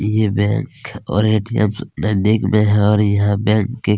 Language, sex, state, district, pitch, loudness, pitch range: Hindi, male, Chhattisgarh, Kabirdham, 105 Hz, -17 LUFS, 105-110 Hz